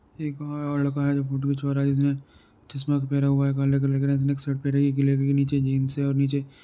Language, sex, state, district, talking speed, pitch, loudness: Hindi, male, Uttar Pradesh, Varanasi, 190 wpm, 140 Hz, -24 LUFS